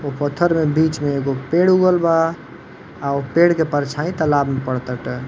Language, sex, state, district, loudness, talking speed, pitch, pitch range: Bhojpuri, male, Uttar Pradesh, Varanasi, -18 LUFS, 205 wpm, 150 Hz, 140-165 Hz